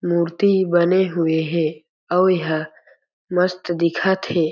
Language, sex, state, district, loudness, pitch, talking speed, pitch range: Chhattisgarhi, male, Chhattisgarh, Jashpur, -19 LUFS, 175 Hz, 130 wpm, 160-185 Hz